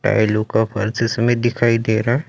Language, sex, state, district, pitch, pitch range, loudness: Hindi, male, Chandigarh, Chandigarh, 115 Hz, 110-120 Hz, -18 LUFS